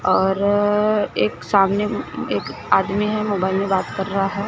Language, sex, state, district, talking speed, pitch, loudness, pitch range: Hindi, female, Maharashtra, Gondia, 160 wpm, 200 Hz, -20 LUFS, 190-205 Hz